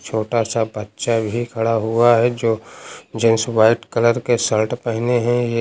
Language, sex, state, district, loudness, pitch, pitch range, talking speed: Hindi, male, Uttar Pradesh, Lucknow, -18 LUFS, 115 Hz, 110-120 Hz, 170 wpm